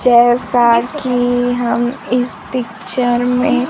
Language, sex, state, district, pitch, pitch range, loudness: Hindi, female, Bihar, Kaimur, 245 Hz, 240-250 Hz, -15 LUFS